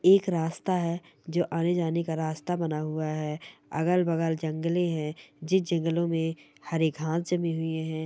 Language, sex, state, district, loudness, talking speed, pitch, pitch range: Hindi, male, Chhattisgarh, Sarguja, -28 LUFS, 165 wpm, 165 Hz, 160-170 Hz